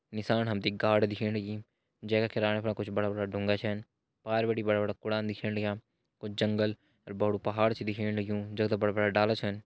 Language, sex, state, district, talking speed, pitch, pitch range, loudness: Hindi, male, Uttarakhand, Uttarkashi, 210 wpm, 105 Hz, 105-110 Hz, -31 LUFS